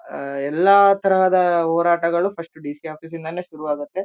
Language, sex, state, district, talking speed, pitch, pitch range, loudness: Kannada, male, Karnataka, Shimoga, 150 wpm, 170 Hz, 155-185 Hz, -18 LUFS